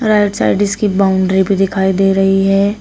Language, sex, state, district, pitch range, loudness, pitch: Hindi, female, Uttar Pradesh, Shamli, 195-205 Hz, -13 LUFS, 195 Hz